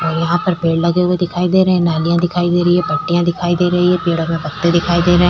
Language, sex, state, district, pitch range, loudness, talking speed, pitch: Hindi, female, Chhattisgarh, Korba, 170-180 Hz, -15 LUFS, 295 wpm, 175 Hz